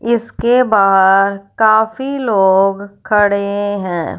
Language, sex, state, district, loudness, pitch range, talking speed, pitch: Hindi, female, Punjab, Fazilka, -13 LUFS, 195-220 Hz, 85 wpm, 205 Hz